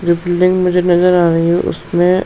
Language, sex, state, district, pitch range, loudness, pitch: Hindi, male, Uttarakhand, Tehri Garhwal, 175-180 Hz, -13 LUFS, 175 Hz